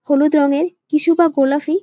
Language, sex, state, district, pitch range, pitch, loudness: Bengali, female, West Bengal, Jalpaiguri, 285-335 Hz, 300 Hz, -15 LUFS